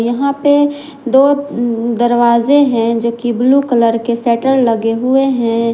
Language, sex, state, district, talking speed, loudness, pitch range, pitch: Hindi, female, Jharkhand, Garhwa, 145 wpm, -13 LUFS, 235-275 Hz, 240 Hz